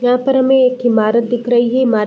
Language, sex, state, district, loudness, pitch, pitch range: Hindi, female, Uttar Pradesh, Deoria, -13 LUFS, 245 Hz, 235-255 Hz